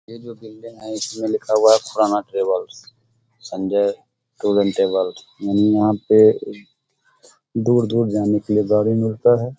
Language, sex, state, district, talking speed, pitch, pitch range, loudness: Hindi, male, Bihar, Samastipur, 150 wpm, 110 Hz, 105-115 Hz, -18 LUFS